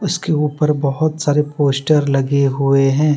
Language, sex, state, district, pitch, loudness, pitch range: Hindi, male, Jharkhand, Deoghar, 145 Hz, -16 LUFS, 140-150 Hz